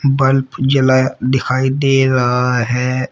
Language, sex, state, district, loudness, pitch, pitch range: Hindi, female, Uttar Pradesh, Shamli, -14 LUFS, 130 Hz, 125-135 Hz